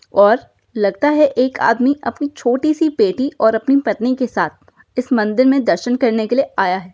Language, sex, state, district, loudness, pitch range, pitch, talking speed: Hindi, female, Uttar Pradesh, Budaun, -16 LUFS, 220-275 Hz, 250 Hz, 200 wpm